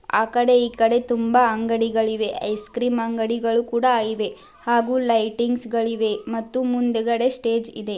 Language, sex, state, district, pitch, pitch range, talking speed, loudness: Kannada, female, Karnataka, Belgaum, 230 Hz, 225-240 Hz, 130 wpm, -21 LUFS